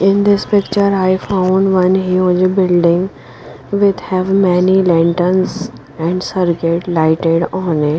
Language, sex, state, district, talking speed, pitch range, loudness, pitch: English, female, Punjab, Pathankot, 130 wpm, 170-190 Hz, -14 LUFS, 185 Hz